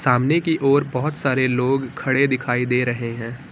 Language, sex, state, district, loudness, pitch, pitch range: Hindi, male, Uttar Pradesh, Lucknow, -20 LUFS, 130 Hz, 125-140 Hz